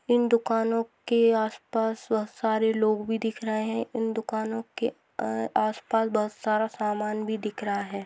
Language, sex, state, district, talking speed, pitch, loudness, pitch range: Hindi, female, Maharashtra, Dhule, 170 wpm, 220 Hz, -27 LUFS, 215-225 Hz